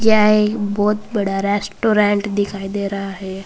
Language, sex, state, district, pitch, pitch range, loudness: Hindi, female, Uttar Pradesh, Saharanpur, 205 Hz, 200-210 Hz, -18 LUFS